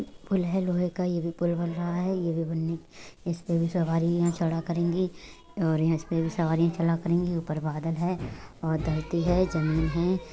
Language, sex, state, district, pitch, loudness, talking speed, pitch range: Hindi, male, Uttar Pradesh, Budaun, 170 Hz, -28 LUFS, 190 wpm, 165-175 Hz